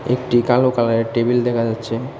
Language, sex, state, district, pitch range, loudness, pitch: Bengali, male, Tripura, West Tripura, 115-125 Hz, -18 LUFS, 120 Hz